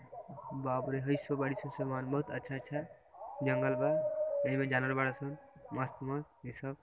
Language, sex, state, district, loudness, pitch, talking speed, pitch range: Bhojpuri, male, Bihar, Gopalganj, -36 LUFS, 135 Hz, 175 wpm, 130-145 Hz